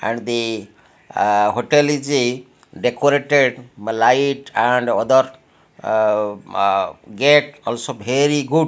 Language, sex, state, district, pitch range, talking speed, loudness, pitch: English, male, Odisha, Malkangiri, 115-145 Hz, 115 wpm, -18 LUFS, 125 Hz